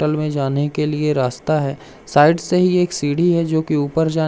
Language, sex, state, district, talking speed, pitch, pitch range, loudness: Hindi, male, Madhya Pradesh, Umaria, 255 wpm, 150 Hz, 145-160 Hz, -18 LUFS